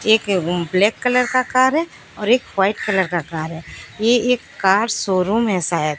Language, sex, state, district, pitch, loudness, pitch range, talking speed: Hindi, female, Odisha, Sambalpur, 205 Hz, -18 LUFS, 180-245 Hz, 180 wpm